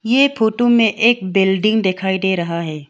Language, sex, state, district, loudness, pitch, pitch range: Hindi, female, Arunachal Pradesh, Longding, -16 LUFS, 200 Hz, 190-230 Hz